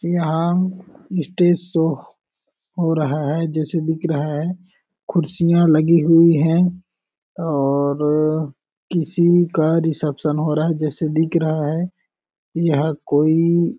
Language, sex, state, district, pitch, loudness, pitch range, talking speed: Hindi, male, Chhattisgarh, Balrampur, 160 Hz, -19 LUFS, 155-170 Hz, 120 wpm